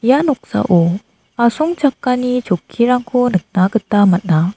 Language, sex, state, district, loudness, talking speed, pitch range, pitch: Garo, female, Meghalaya, South Garo Hills, -15 LUFS, 90 wpm, 185-250 Hz, 235 Hz